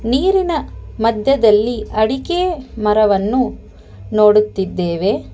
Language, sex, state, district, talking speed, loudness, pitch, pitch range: Kannada, female, Karnataka, Bangalore, 55 wpm, -16 LUFS, 215 Hz, 200-255 Hz